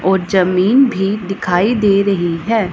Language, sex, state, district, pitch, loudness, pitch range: Hindi, female, Punjab, Pathankot, 195 Hz, -14 LUFS, 185-210 Hz